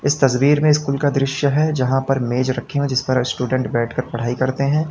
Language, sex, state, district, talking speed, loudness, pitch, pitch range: Hindi, male, Uttar Pradesh, Lalitpur, 230 wpm, -19 LUFS, 135 Hz, 125-140 Hz